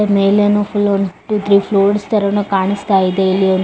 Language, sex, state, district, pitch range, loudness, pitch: Kannada, female, Karnataka, Bellary, 195-205 Hz, -14 LUFS, 200 Hz